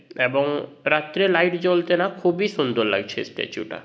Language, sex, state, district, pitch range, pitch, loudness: Bengali, male, West Bengal, Jhargram, 150-185 Hz, 175 Hz, -22 LUFS